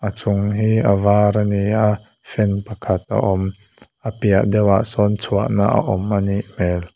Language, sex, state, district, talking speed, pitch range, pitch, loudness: Mizo, male, Mizoram, Aizawl, 190 wpm, 100-105 Hz, 105 Hz, -18 LUFS